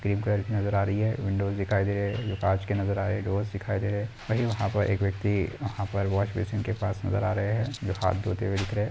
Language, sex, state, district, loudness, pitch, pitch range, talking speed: Hindi, male, Maharashtra, Pune, -28 LUFS, 100 Hz, 100-105 Hz, 310 wpm